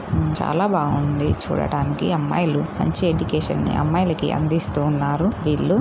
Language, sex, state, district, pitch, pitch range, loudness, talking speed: Telugu, female, Telangana, Karimnagar, 155 Hz, 145-170 Hz, -21 LUFS, 115 wpm